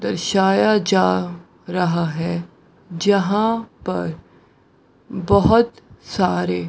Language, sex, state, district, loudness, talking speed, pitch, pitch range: Hindi, female, Bihar, Gaya, -19 LUFS, 80 wpm, 185 Hz, 165-200 Hz